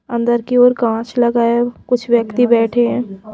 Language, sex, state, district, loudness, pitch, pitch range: Hindi, female, Himachal Pradesh, Shimla, -15 LUFS, 240 Hz, 235-245 Hz